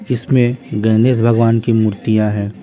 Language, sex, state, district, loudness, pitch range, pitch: Hindi, male, Bihar, Patna, -14 LUFS, 110-125 Hz, 115 Hz